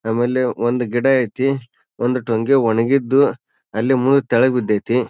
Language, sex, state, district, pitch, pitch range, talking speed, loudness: Kannada, male, Karnataka, Bijapur, 125 Hz, 115-135 Hz, 140 wpm, -18 LUFS